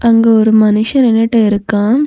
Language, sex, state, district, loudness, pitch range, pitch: Tamil, female, Tamil Nadu, Nilgiris, -11 LUFS, 215-230 Hz, 225 Hz